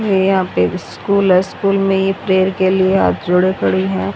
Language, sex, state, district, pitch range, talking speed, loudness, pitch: Hindi, female, Haryana, Rohtak, 180-195 Hz, 215 wpm, -15 LUFS, 190 Hz